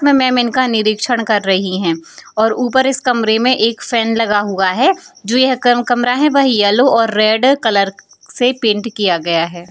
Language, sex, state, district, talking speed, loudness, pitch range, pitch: Hindi, female, Bihar, Jamui, 200 wpm, -14 LUFS, 205-255 Hz, 230 Hz